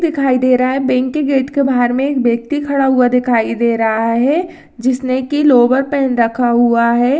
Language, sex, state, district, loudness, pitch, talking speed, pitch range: Hindi, female, Rajasthan, Churu, -14 LUFS, 255 Hz, 190 wpm, 240-275 Hz